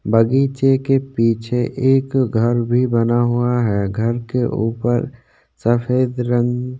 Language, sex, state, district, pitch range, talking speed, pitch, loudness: Hindi, male, Uttarakhand, Tehri Garhwal, 115-130 Hz, 130 wpm, 120 Hz, -18 LUFS